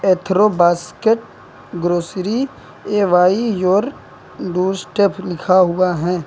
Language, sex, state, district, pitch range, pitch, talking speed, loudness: Hindi, male, Uttar Pradesh, Lucknow, 180-205 Hz, 185 Hz, 85 wpm, -17 LUFS